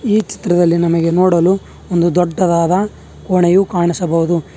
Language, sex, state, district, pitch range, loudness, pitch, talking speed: Kannada, male, Karnataka, Bangalore, 170-185 Hz, -14 LUFS, 175 Hz, 105 wpm